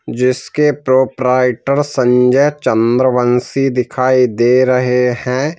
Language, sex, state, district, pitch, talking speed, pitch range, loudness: Hindi, male, Madhya Pradesh, Bhopal, 125 Hz, 85 wpm, 125-135 Hz, -13 LUFS